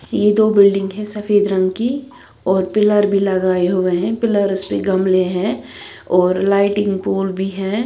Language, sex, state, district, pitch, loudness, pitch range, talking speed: Hindi, female, Punjab, Kapurthala, 195 Hz, -16 LUFS, 185-210 Hz, 170 wpm